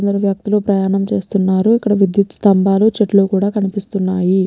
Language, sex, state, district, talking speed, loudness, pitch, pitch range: Telugu, female, Telangana, Nalgonda, 120 wpm, -15 LUFS, 200 Hz, 195-205 Hz